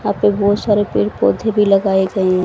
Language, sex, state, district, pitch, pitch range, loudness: Hindi, female, Haryana, Rohtak, 195 Hz, 185-205 Hz, -15 LUFS